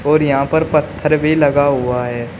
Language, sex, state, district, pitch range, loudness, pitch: Hindi, male, Uttar Pradesh, Shamli, 135-155 Hz, -15 LUFS, 145 Hz